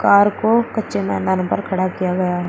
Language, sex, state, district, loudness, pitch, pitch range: Hindi, female, Uttar Pradesh, Shamli, -18 LUFS, 190 Hz, 185-210 Hz